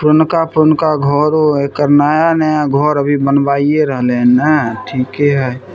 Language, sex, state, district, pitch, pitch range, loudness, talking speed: Maithili, male, Bihar, Samastipur, 145 Hz, 140-155 Hz, -12 LUFS, 125 wpm